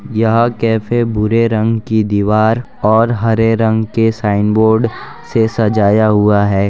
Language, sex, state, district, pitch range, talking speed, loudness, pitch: Hindi, male, Gujarat, Valsad, 105-115 Hz, 145 wpm, -13 LUFS, 110 Hz